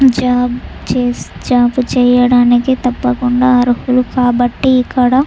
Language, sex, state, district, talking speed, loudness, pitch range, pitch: Telugu, female, Andhra Pradesh, Chittoor, 80 wpm, -12 LUFS, 245-255 Hz, 250 Hz